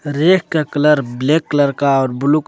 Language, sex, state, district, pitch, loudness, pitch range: Hindi, male, Jharkhand, Ranchi, 145 Hz, -15 LUFS, 140-155 Hz